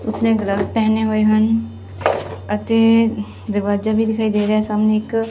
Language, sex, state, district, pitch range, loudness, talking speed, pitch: Punjabi, female, Punjab, Fazilka, 210-225 Hz, -18 LUFS, 145 wpm, 215 Hz